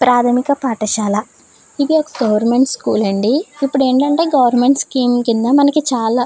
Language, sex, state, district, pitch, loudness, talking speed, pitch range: Telugu, female, Andhra Pradesh, Krishna, 250 Hz, -15 LUFS, 135 wpm, 235-280 Hz